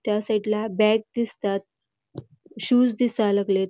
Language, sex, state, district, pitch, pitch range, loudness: Marathi, female, Karnataka, Belgaum, 215 Hz, 205-230 Hz, -23 LUFS